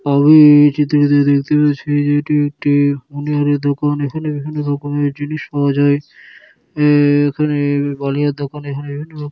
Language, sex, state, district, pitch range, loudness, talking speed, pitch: Bengali, male, West Bengal, Jalpaiguri, 145-150 Hz, -15 LUFS, 140 wpm, 145 Hz